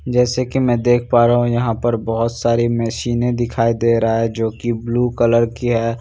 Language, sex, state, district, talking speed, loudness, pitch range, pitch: Hindi, male, Bihar, Katihar, 220 wpm, -17 LUFS, 115-120 Hz, 120 Hz